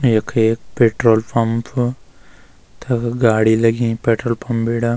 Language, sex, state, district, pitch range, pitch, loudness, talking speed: Garhwali, male, Uttarakhand, Uttarkashi, 115-120 Hz, 115 Hz, -17 LUFS, 120 wpm